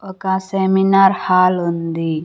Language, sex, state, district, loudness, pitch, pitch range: Telugu, female, Andhra Pradesh, Sri Satya Sai, -16 LUFS, 190 Hz, 170-190 Hz